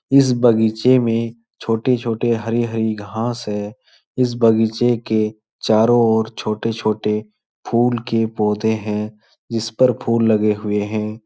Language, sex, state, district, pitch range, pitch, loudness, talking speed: Hindi, male, Bihar, Supaul, 110-120 Hz, 110 Hz, -18 LUFS, 125 wpm